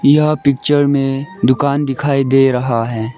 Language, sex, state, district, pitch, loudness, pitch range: Hindi, male, Arunachal Pradesh, Lower Dibang Valley, 135 Hz, -14 LUFS, 130-145 Hz